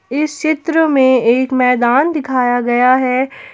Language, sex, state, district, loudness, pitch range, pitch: Hindi, female, Jharkhand, Palamu, -13 LUFS, 250-300 Hz, 260 Hz